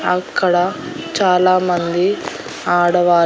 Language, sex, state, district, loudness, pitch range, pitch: Telugu, female, Andhra Pradesh, Annamaya, -16 LUFS, 175-185 Hz, 180 Hz